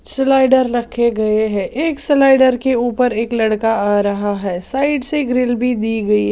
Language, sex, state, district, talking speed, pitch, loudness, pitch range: Hindi, female, Odisha, Sambalpur, 180 wpm, 240 Hz, -16 LUFS, 215-265 Hz